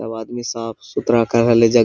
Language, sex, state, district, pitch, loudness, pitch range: Hindi, male, Jharkhand, Sahebganj, 115 Hz, -18 LUFS, 115-120 Hz